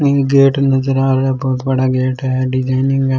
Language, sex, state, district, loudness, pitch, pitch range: Rajasthani, male, Rajasthan, Churu, -15 LUFS, 135 Hz, 130-135 Hz